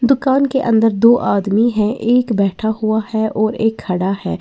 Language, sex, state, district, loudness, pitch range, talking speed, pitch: Hindi, female, Uttar Pradesh, Lalitpur, -15 LUFS, 210-240 Hz, 190 wpm, 220 Hz